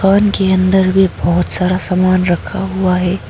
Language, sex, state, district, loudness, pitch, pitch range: Hindi, female, Arunachal Pradesh, Papum Pare, -14 LUFS, 185 Hz, 180-190 Hz